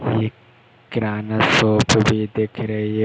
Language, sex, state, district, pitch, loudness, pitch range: Hindi, male, Uttar Pradesh, Hamirpur, 110 Hz, -19 LUFS, 110-115 Hz